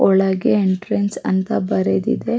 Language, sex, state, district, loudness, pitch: Kannada, female, Karnataka, Mysore, -18 LUFS, 190 Hz